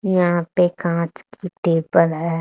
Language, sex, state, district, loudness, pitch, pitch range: Hindi, female, Haryana, Charkhi Dadri, -19 LUFS, 170 Hz, 165-180 Hz